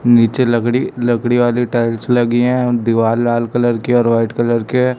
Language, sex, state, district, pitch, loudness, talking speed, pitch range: Hindi, male, Chhattisgarh, Raipur, 120 Hz, -15 LUFS, 180 wpm, 115-120 Hz